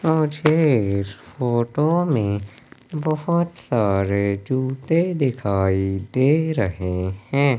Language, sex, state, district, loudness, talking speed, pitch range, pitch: Hindi, male, Madhya Pradesh, Katni, -21 LUFS, 95 wpm, 100-155 Hz, 130 Hz